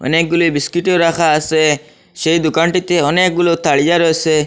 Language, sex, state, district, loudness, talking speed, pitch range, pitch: Bengali, male, Assam, Hailakandi, -14 LUFS, 135 wpm, 155-170 Hz, 165 Hz